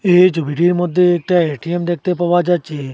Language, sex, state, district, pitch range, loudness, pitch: Bengali, male, Assam, Hailakandi, 170-180 Hz, -15 LUFS, 175 Hz